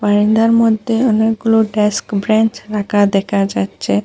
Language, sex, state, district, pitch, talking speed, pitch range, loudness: Bengali, female, Assam, Hailakandi, 215 Hz, 120 wpm, 200-225 Hz, -15 LUFS